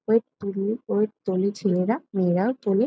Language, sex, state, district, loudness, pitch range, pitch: Bengali, female, West Bengal, Jalpaiguri, -25 LUFS, 195-225 Hz, 210 Hz